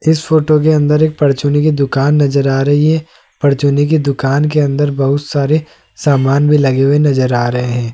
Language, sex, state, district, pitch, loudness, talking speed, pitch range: Hindi, male, Rajasthan, Jaipur, 145 Hz, -12 LUFS, 205 wpm, 140-150 Hz